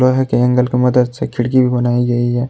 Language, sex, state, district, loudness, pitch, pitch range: Hindi, male, Jharkhand, Palamu, -15 LUFS, 125 Hz, 120-130 Hz